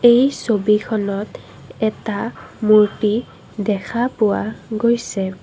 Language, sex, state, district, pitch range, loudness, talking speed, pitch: Assamese, female, Assam, Kamrup Metropolitan, 210-235 Hz, -19 LUFS, 75 wpm, 215 Hz